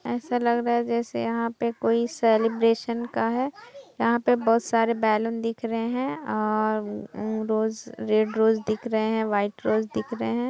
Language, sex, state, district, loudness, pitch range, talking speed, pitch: Hindi, female, Bihar, East Champaran, -25 LUFS, 215-235 Hz, 185 wpm, 230 Hz